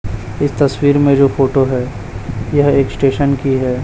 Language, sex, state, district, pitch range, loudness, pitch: Hindi, male, Chhattisgarh, Raipur, 125-140 Hz, -14 LUFS, 135 Hz